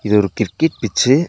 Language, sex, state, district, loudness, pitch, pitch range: Tamil, male, Tamil Nadu, Nilgiris, -17 LUFS, 110 Hz, 105-150 Hz